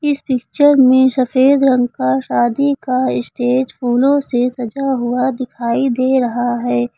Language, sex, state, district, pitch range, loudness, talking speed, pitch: Hindi, female, Uttar Pradesh, Lucknow, 240-265 Hz, -15 LUFS, 145 wpm, 255 Hz